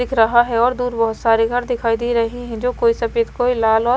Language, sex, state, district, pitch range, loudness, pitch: Hindi, female, Haryana, Rohtak, 230-245 Hz, -18 LUFS, 235 Hz